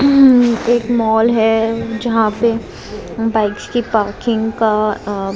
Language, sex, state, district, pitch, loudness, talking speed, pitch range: Hindi, female, Maharashtra, Mumbai Suburban, 225 Hz, -15 LUFS, 100 wpm, 215-235 Hz